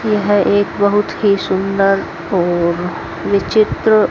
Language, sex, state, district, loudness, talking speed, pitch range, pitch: Hindi, female, Haryana, Jhajjar, -15 LUFS, 100 wpm, 190-205 Hz, 200 Hz